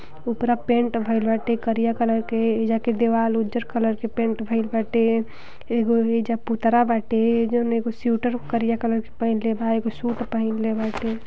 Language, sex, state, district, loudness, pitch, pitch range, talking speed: Bhojpuri, female, Uttar Pradesh, Gorakhpur, -22 LUFS, 230 Hz, 225-235 Hz, 170 wpm